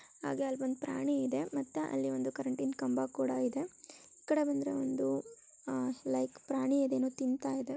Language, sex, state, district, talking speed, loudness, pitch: Kannada, female, Karnataka, Raichur, 155 wpm, -35 LUFS, 260 Hz